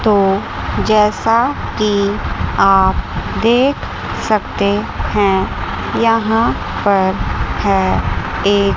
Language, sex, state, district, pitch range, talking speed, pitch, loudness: Hindi, female, Chandigarh, Chandigarh, 195-225 Hz, 75 wpm, 205 Hz, -15 LUFS